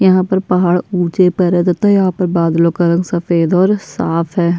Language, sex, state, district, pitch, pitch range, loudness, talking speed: Hindi, female, Chhattisgarh, Sukma, 180 Hz, 170-185 Hz, -14 LUFS, 210 wpm